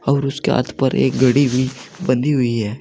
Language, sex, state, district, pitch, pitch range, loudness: Hindi, male, Uttar Pradesh, Saharanpur, 130 Hz, 125-140 Hz, -18 LUFS